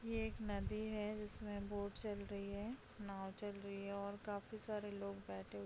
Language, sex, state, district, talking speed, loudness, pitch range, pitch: Hindi, female, Bihar, Begusarai, 200 wpm, -44 LUFS, 200-210 Hz, 205 Hz